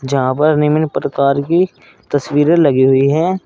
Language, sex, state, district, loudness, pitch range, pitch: Hindi, male, Uttar Pradesh, Saharanpur, -14 LUFS, 135-155 Hz, 145 Hz